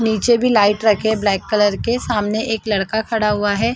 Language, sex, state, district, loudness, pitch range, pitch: Hindi, female, Chhattisgarh, Rajnandgaon, -17 LUFS, 205-225 Hz, 215 Hz